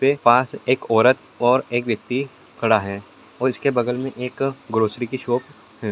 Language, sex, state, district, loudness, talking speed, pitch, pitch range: Hindi, male, Uttar Pradesh, Deoria, -21 LUFS, 190 wpm, 125 Hz, 115-130 Hz